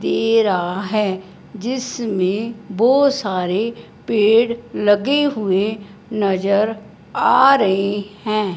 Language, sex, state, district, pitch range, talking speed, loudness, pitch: Hindi, male, Punjab, Fazilka, 195-230 Hz, 90 wpm, -18 LUFS, 210 Hz